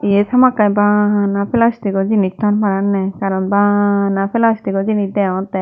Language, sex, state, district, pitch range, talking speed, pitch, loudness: Chakma, female, Tripura, Dhalai, 195-210 Hz, 150 wpm, 205 Hz, -15 LUFS